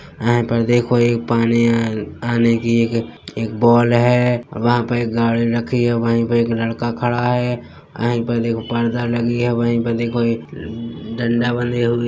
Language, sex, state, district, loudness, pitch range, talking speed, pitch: Hindi, male, Chhattisgarh, Bilaspur, -18 LUFS, 115-120 Hz, 185 wpm, 120 Hz